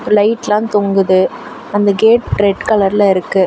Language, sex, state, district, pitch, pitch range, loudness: Tamil, female, Tamil Nadu, Chennai, 205 Hz, 195-215 Hz, -13 LUFS